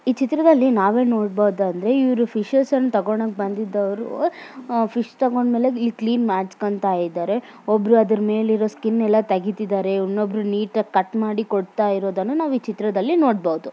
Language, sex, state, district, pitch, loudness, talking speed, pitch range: Kannada, female, Karnataka, Mysore, 220 Hz, -20 LUFS, 85 wpm, 205-245 Hz